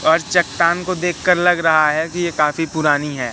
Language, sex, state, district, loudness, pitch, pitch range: Hindi, male, Madhya Pradesh, Katni, -17 LUFS, 165 Hz, 150-175 Hz